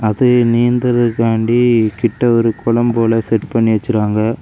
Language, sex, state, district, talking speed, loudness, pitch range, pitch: Tamil, male, Tamil Nadu, Kanyakumari, 135 wpm, -14 LUFS, 115-120 Hz, 115 Hz